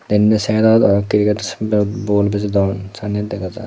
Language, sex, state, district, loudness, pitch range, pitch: Chakma, male, Tripura, Dhalai, -16 LUFS, 100-105 Hz, 105 Hz